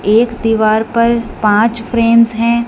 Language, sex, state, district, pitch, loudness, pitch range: Hindi, female, Punjab, Fazilka, 230 Hz, -12 LUFS, 220-235 Hz